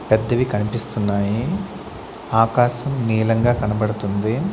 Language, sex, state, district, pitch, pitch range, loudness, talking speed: Telugu, male, Andhra Pradesh, Sri Satya Sai, 115 Hz, 110-125 Hz, -20 LUFS, 65 wpm